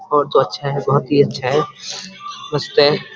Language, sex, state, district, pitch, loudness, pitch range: Hindi, male, Uttarakhand, Uttarkashi, 145 Hz, -17 LUFS, 140-195 Hz